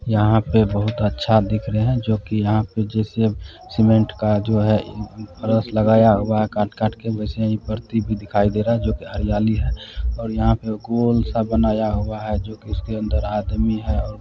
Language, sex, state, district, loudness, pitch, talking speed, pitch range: Maithili, male, Bihar, Supaul, -20 LUFS, 110 Hz, 210 wpm, 105-110 Hz